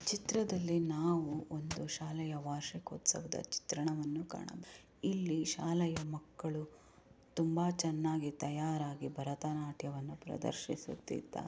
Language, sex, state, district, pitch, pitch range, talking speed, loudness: Kannada, female, Karnataka, Raichur, 155 Hz, 150-170 Hz, 85 wpm, -38 LUFS